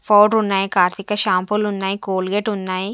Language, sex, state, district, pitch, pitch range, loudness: Telugu, female, Andhra Pradesh, Sri Satya Sai, 200 Hz, 190-210 Hz, -18 LUFS